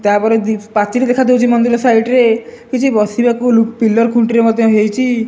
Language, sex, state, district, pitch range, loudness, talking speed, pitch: Odia, male, Odisha, Malkangiri, 225-245 Hz, -13 LUFS, 135 wpm, 230 Hz